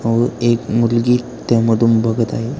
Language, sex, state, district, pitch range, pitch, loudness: Marathi, male, Maharashtra, Aurangabad, 115-120 Hz, 115 Hz, -16 LUFS